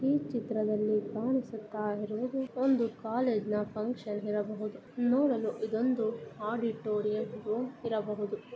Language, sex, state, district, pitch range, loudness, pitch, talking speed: Kannada, female, Karnataka, Bijapur, 210-245 Hz, -33 LUFS, 220 Hz, 85 wpm